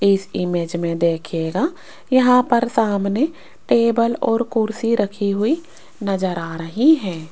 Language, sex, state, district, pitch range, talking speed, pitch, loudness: Hindi, female, Rajasthan, Jaipur, 175-235 Hz, 130 wpm, 210 Hz, -19 LUFS